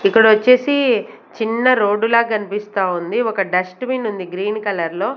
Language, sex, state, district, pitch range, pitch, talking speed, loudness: Telugu, female, Andhra Pradesh, Sri Satya Sai, 195-235 Hz, 215 Hz, 165 wpm, -17 LUFS